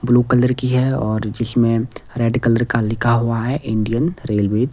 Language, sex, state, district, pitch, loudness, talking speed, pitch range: Hindi, male, Himachal Pradesh, Shimla, 115 Hz, -18 LUFS, 190 wpm, 115-125 Hz